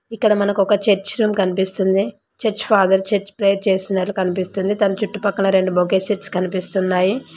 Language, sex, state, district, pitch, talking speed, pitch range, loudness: Telugu, female, Telangana, Mahabubabad, 195 Hz, 145 wpm, 190-205 Hz, -18 LUFS